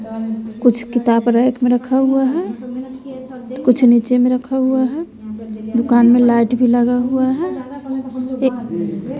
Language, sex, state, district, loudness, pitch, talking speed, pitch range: Hindi, female, Bihar, West Champaran, -16 LUFS, 250 Hz, 145 wpm, 235-260 Hz